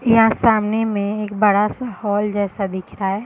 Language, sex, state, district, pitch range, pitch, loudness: Hindi, female, Bihar, Madhepura, 200-225 Hz, 210 Hz, -19 LUFS